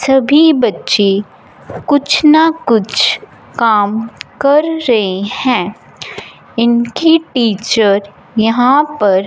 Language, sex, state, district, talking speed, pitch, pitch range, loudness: Hindi, male, Punjab, Fazilka, 85 wpm, 235 Hz, 210-290 Hz, -12 LUFS